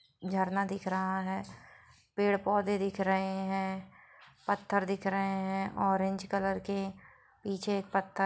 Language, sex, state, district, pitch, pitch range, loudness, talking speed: Hindi, female, Bihar, Saran, 195 Hz, 190-195 Hz, -33 LUFS, 130 wpm